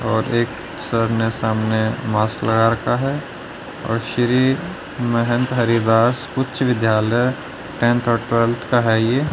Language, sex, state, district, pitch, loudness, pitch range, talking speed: Hindi, male, Haryana, Rohtak, 115 Hz, -19 LUFS, 115-125 Hz, 135 wpm